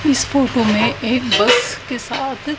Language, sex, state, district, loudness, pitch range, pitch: Hindi, female, Haryana, Rohtak, -16 LUFS, 235-275 Hz, 255 Hz